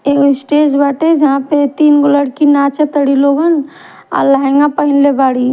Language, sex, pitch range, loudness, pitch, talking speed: Bhojpuri, female, 280-295 Hz, -11 LUFS, 285 Hz, 140 wpm